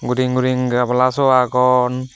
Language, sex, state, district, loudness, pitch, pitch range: Chakma, male, Tripura, Dhalai, -16 LUFS, 125 Hz, 125-130 Hz